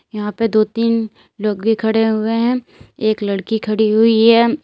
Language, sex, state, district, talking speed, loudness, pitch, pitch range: Hindi, female, Uttar Pradesh, Lalitpur, 180 wpm, -16 LUFS, 220 Hz, 215-230 Hz